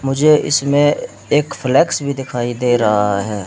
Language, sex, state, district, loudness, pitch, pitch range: Hindi, male, Haryana, Rohtak, -16 LUFS, 135 Hz, 120-145 Hz